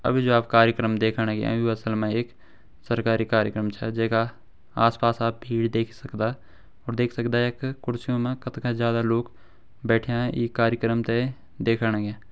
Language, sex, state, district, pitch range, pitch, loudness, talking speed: Garhwali, male, Uttarakhand, Uttarkashi, 110-120 Hz, 115 Hz, -25 LUFS, 165 wpm